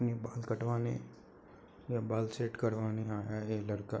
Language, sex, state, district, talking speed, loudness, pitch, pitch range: Hindi, male, Uttar Pradesh, Hamirpur, 150 wpm, -37 LUFS, 110 Hz, 110-115 Hz